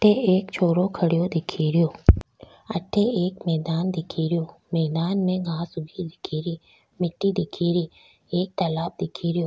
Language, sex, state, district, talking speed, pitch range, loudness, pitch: Rajasthani, female, Rajasthan, Nagaur, 150 wpm, 165-185 Hz, -24 LUFS, 170 Hz